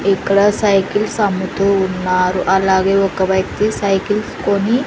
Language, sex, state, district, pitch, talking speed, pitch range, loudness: Telugu, female, Andhra Pradesh, Sri Satya Sai, 195 Hz, 110 wpm, 190-205 Hz, -15 LUFS